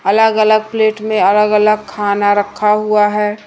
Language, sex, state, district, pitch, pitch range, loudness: Hindi, female, Madhya Pradesh, Umaria, 210 Hz, 210-215 Hz, -13 LUFS